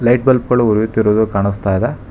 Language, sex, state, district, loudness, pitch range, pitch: Kannada, male, Karnataka, Bangalore, -15 LUFS, 105-125 Hz, 110 Hz